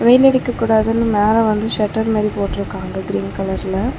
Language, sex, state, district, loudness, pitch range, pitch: Tamil, female, Tamil Nadu, Chennai, -17 LUFS, 205-230 Hz, 220 Hz